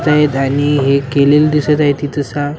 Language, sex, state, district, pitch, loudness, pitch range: Marathi, male, Maharashtra, Washim, 145 Hz, -13 LUFS, 140-150 Hz